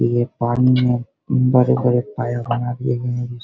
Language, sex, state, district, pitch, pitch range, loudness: Hindi, male, Bihar, Begusarai, 125 Hz, 120-125 Hz, -19 LUFS